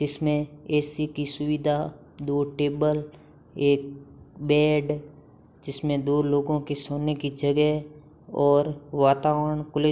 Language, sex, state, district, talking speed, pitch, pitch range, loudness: Hindi, male, Uttar Pradesh, Hamirpur, 115 wpm, 150 Hz, 145-150 Hz, -25 LUFS